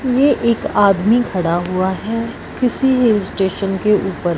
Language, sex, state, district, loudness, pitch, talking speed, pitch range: Hindi, female, Punjab, Fazilka, -16 LUFS, 210 Hz, 150 wpm, 190-245 Hz